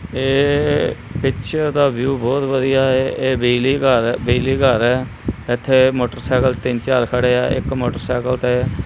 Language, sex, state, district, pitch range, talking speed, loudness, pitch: Punjabi, male, Punjab, Kapurthala, 120-135 Hz, 140 wpm, -17 LUFS, 130 Hz